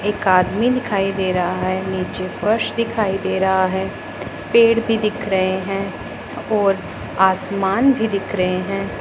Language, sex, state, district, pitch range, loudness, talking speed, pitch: Hindi, female, Punjab, Pathankot, 190-215 Hz, -19 LUFS, 155 wpm, 195 Hz